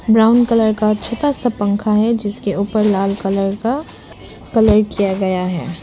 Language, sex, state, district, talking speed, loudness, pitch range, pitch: Hindi, female, Arunachal Pradesh, Lower Dibang Valley, 165 wpm, -16 LUFS, 195-225 Hz, 210 Hz